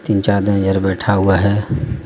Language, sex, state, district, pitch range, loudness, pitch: Hindi, male, Jharkhand, Deoghar, 95-105 Hz, -16 LUFS, 100 Hz